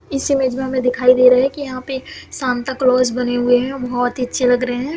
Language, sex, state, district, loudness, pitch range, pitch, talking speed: Hindi, female, Bihar, Samastipur, -17 LUFS, 250-265 Hz, 255 Hz, 265 wpm